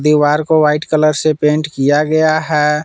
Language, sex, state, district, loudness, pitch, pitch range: Hindi, male, Jharkhand, Palamu, -13 LUFS, 150 Hz, 150-155 Hz